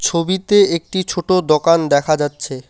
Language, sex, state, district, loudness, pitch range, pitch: Bengali, male, West Bengal, Alipurduar, -16 LUFS, 150-185 Hz, 170 Hz